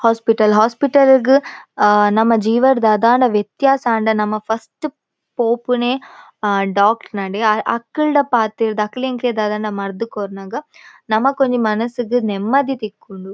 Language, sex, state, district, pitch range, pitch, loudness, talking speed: Tulu, female, Karnataka, Dakshina Kannada, 215-255 Hz, 225 Hz, -16 LUFS, 125 wpm